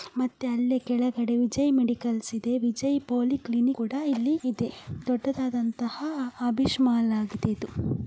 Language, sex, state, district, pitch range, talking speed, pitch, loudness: Kannada, female, Karnataka, Dakshina Kannada, 235-265 Hz, 120 wpm, 245 Hz, -27 LUFS